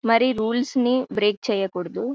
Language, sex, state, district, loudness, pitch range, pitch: Telugu, female, Karnataka, Bellary, -22 LUFS, 210-250 Hz, 230 Hz